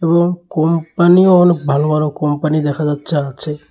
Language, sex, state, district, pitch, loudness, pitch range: Bengali, male, Tripura, West Tripura, 155 Hz, -14 LUFS, 150-170 Hz